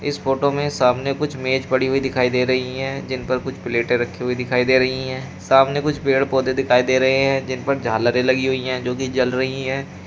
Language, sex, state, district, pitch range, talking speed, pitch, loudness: Hindi, male, Uttar Pradesh, Shamli, 125-135 Hz, 240 wpm, 130 Hz, -19 LUFS